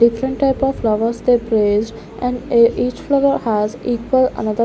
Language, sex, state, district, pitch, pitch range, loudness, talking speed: English, female, Chandigarh, Chandigarh, 235 Hz, 225-260 Hz, -17 LUFS, 180 wpm